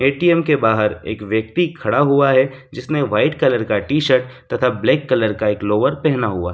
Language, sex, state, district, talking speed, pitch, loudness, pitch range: Hindi, male, Delhi, New Delhi, 195 wpm, 130 Hz, -17 LUFS, 110-145 Hz